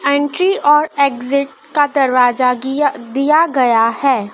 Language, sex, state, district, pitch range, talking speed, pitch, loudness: Hindi, female, Madhya Pradesh, Dhar, 250-290 Hz, 125 wpm, 280 Hz, -14 LUFS